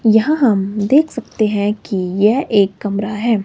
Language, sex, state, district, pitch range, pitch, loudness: Hindi, female, Himachal Pradesh, Shimla, 205-235 Hz, 210 Hz, -16 LUFS